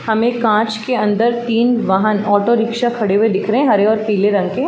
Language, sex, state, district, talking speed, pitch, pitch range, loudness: Hindi, female, Uttar Pradesh, Jalaun, 245 wpm, 220 Hz, 205-235 Hz, -15 LUFS